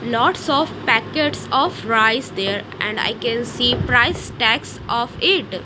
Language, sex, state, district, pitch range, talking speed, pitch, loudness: English, female, Odisha, Nuapada, 225-295 Hz, 150 wpm, 235 Hz, -18 LUFS